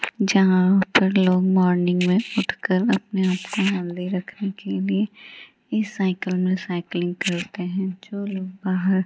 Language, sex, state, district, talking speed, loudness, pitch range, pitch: Hindi, female, Bihar, Gaya, 140 wpm, -22 LUFS, 185-200 Hz, 190 Hz